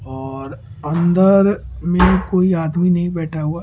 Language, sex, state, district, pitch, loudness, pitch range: Hindi, male, Delhi, New Delhi, 170 Hz, -16 LUFS, 150-185 Hz